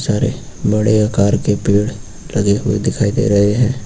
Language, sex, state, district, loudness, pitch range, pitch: Hindi, male, Uttar Pradesh, Lucknow, -16 LUFS, 100-115 Hz, 105 Hz